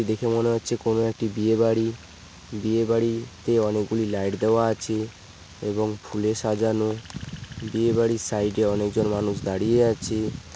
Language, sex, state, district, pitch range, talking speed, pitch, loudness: Bengali, male, West Bengal, Paschim Medinipur, 105-115 Hz, 135 wpm, 110 Hz, -24 LUFS